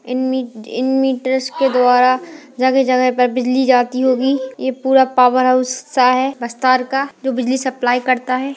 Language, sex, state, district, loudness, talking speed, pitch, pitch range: Hindi, female, Chhattisgarh, Bastar, -16 LUFS, 175 wpm, 255 Hz, 250-265 Hz